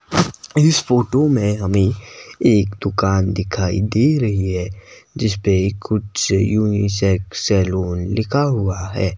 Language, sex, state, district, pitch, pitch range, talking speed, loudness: Hindi, male, Himachal Pradesh, Shimla, 100 Hz, 95-110 Hz, 120 wpm, -18 LUFS